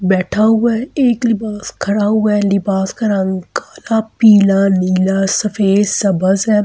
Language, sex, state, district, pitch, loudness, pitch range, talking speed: Hindi, female, Delhi, New Delhi, 205 Hz, -14 LUFS, 195-220 Hz, 160 wpm